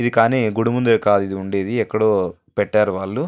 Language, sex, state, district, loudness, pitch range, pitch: Telugu, male, Andhra Pradesh, Anantapur, -19 LUFS, 105-115 Hz, 110 Hz